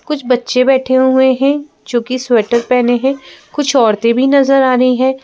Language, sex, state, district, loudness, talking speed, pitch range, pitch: Hindi, female, Madhya Pradesh, Bhopal, -12 LUFS, 185 wpm, 250-270 Hz, 260 Hz